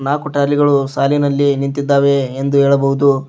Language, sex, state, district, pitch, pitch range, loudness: Kannada, male, Karnataka, Koppal, 140 Hz, 140-145 Hz, -14 LUFS